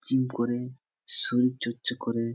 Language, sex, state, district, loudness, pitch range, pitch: Bengali, male, West Bengal, Jhargram, -27 LUFS, 115-125 Hz, 120 Hz